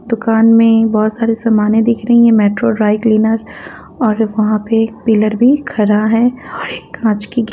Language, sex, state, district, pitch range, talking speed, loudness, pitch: Hindi, female, Haryana, Jhajjar, 215-230 Hz, 185 wpm, -12 LUFS, 225 Hz